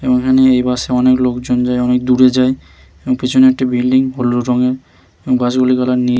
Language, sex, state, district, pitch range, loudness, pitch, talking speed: Bengali, male, West Bengal, Malda, 125-130 Hz, -13 LUFS, 125 Hz, 205 wpm